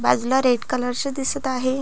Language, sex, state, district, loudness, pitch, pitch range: Marathi, female, Maharashtra, Pune, -22 LUFS, 260 Hz, 250-270 Hz